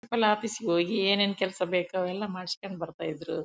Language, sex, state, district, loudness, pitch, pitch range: Kannada, female, Karnataka, Bellary, -29 LUFS, 185 Hz, 175-205 Hz